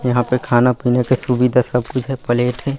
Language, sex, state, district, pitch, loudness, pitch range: Hindi, male, Chhattisgarh, Raigarh, 125 Hz, -17 LUFS, 125-130 Hz